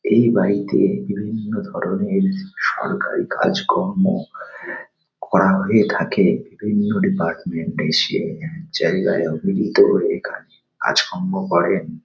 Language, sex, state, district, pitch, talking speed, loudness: Bengali, male, West Bengal, Paschim Medinipur, 190 Hz, 100 wpm, -19 LUFS